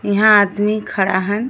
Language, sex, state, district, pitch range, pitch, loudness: Bhojpuri, female, Uttar Pradesh, Gorakhpur, 200-215 Hz, 205 Hz, -15 LUFS